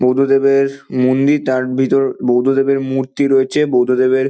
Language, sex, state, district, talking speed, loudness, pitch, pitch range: Bengali, male, West Bengal, North 24 Parganas, 110 wpm, -15 LUFS, 135 Hz, 130-135 Hz